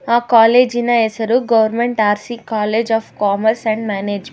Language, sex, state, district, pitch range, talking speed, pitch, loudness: Kannada, female, Karnataka, Bangalore, 215-235 Hz, 150 wpm, 225 Hz, -15 LUFS